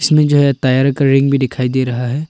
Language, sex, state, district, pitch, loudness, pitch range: Hindi, male, Arunachal Pradesh, Longding, 135 Hz, -14 LUFS, 130-140 Hz